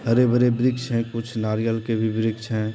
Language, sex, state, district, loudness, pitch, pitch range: Hindi, male, Bihar, Purnia, -23 LUFS, 115 Hz, 110-120 Hz